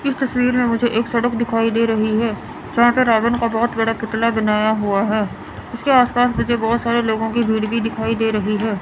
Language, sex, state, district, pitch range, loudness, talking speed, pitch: Hindi, female, Chandigarh, Chandigarh, 220-240 Hz, -18 LUFS, 225 wpm, 230 Hz